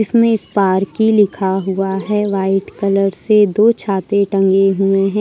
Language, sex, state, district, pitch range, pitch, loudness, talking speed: Hindi, female, Jharkhand, Deoghar, 195-210 Hz, 195 Hz, -15 LUFS, 160 wpm